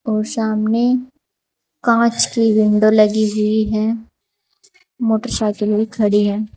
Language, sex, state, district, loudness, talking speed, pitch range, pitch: Hindi, female, Uttar Pradesh, Saharanpur, -16 LUFS, 110 wpm, 215-235 Hz, 220 Hz